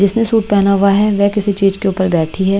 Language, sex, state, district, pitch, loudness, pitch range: Hindi, female, Himachal Pradesh, Shimla, 200 Hz, -14 LUFS, 195-205 Hz